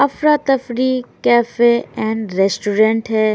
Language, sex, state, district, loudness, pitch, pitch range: Hindi, female, Bihar, Patna, -16 LUFS, 235 Hz, 220-255 Hz